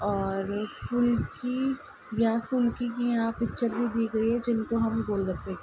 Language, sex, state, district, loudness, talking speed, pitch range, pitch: Hindi, female, Uttar Pradesh, Ghazipur, -29 LUFS, 170 wpm, 210-240 Hz, 230 Hz